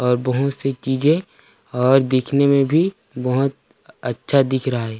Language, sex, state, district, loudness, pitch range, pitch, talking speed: Chhattisgarhi, male, Chhattisgarh, Rajnandgaon, -19 LUFS, 125-140 Hz, 135 Hz, 155 wpm